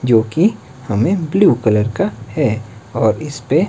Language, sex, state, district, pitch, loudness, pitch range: Hindi, male, Himachal Pradesh, Shimla, 120 Hz, -16 LUFS, 110-155 Hz